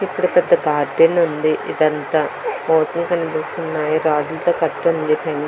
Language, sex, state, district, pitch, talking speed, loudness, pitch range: Telugu, female, Andhra Pradesh, Visakhapatnam, 160 Hz, 100 wpm, -18 LUFS, 155-170 Hz